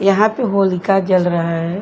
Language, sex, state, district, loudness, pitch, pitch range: Hindi, female, Uttar Pradesh, Etah, -16 LUFS, 195 Hz, 175-200 Hz